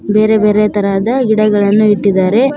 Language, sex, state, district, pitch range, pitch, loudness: Kannada, female, Karnataka, Koppal, 205-215 Hz, 210 Hz, -11 LUFS